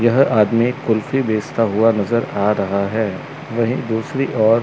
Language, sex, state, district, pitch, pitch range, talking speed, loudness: Hindi, male, Chandigarh, Chandigarh, 115 Hz, 110-120 Hz, 155 wpm, -18 LUFS